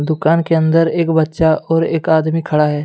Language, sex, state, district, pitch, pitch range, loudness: Hindi, male, Jharkhand, Deoghar, 160 Hz, 155-165 Hz, -15 LUFS